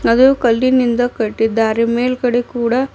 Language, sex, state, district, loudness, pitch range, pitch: Kannada, female, Karnataka, Bidar, -15 LUFS, 230-255 Hz, 240 Hz